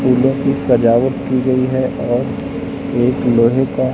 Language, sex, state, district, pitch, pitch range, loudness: Hindi, male, Madhya Pradesh, Katni, 130 Hz, 125-130 Hz, -16 LUFS